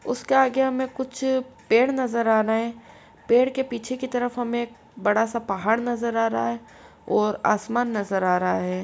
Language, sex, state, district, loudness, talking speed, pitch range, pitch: Hindi, female, Uttar Pradesh, Etah, -23 LUFS, 190 wpm, 215-255 Hz, 235 Hz